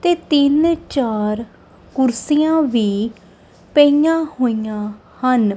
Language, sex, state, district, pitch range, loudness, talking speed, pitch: Punjabi, female, Punjab, Kapurthala, 220-300 Hz, -17 LUFS, 85 wpm, 255 Hz